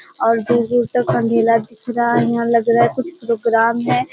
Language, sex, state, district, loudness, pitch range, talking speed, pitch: Hindi, male, Bihar, Jamui, -17 LUFS, 230-240 Hz, 205 wpm, 235 Hz